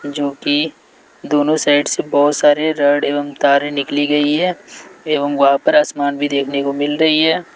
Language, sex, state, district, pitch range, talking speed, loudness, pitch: Hindi, male, Bihar, West Champaran, 145-150 Hz, 175 wpm, -15 LUFS, 145 Hz